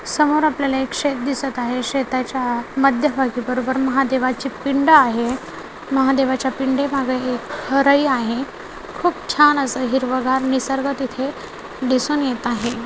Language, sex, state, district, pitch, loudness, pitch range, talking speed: Marathi, female, Maharashtra, Chandrapur, 265 Hz, -19 LUFS, 255-275 Hz, 130 wpm